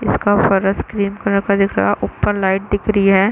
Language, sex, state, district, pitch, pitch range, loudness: Hindi, female, Chhattisgarh, Bilaspur, 200 Hz, 195-205 Hz, -16 LUFS